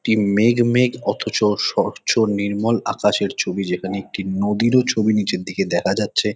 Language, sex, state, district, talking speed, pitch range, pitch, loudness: Bengali, male, West Bengal, Kolkata, 140 wpm, 100-115 Hz, 105 Hz, -19 LUFS